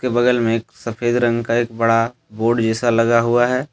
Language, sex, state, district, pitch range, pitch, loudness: Hindi, male, Jharkhand, Deoghar, 115-120 Hz, 115 Hz, -18 LUFS